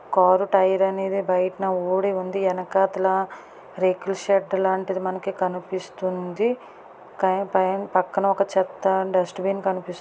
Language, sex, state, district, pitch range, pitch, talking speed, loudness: Telugu, female, Andhra Pradesh, Guntur, 185-195 Hz, 190 Hz, 115 wpm, -23 LUFS